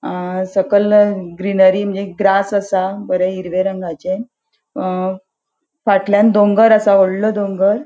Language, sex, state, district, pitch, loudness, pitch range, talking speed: Konkani, female, Goa, North and South Goa, 195 Hz, -15 LUFS, 190-205 Hz, 115 wpm